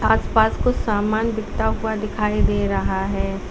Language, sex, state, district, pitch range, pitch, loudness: Hindi, female, Uttar Pradesh, Lalitpur, 200-220 Hz, 210 Hz, -21 LUFS